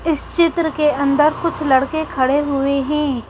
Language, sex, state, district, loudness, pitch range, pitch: Hindi, female, Madhya Pradesh, Bhopal, -17 LUFS, 275-315 Hz, 295 Hz